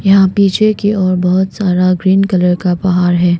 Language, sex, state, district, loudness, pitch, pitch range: Hindi, female, Arunachal Pradesh, Longding, -12 LUFS, 185 Hz, 180-195 Hz